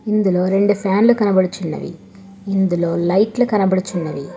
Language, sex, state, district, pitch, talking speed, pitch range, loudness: Telugu, female, Telangana, Hyderabad, 195 Hz, 95 wpm, 180-205 Hz, -17 LUFS